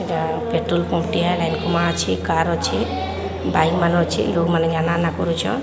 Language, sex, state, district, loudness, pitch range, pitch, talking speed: Odia, female, Odisha, Sambalpur, -20 LUFS, 160-170 Hz, 165 Hz, 140 wpm